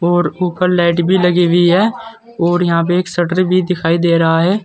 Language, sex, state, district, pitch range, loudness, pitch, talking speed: Hindi, male, Uttar Pradesh, Saharanpur, 170-185 Hz, -14 LUFS, 175 Hz, 220 wpm